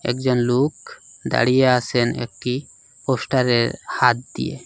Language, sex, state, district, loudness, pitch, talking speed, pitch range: Bengali, male, Assam, Hailakandi, -20 LUFS, 125 Hz, 105 wpm, 120-130 Hz